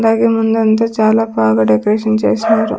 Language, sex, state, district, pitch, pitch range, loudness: Telugu, female, Andhra Pradesh, Sri Satya Sai, 220 Hz, 215-225 Hz, -13 LUFS